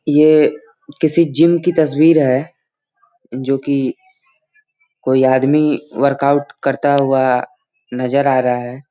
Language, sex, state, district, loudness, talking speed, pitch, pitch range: Hindi, male, Uttar Pradesh, Gorakhpur, -15 LUFS, 115 wpm, 145 Hz, 130-170 Hz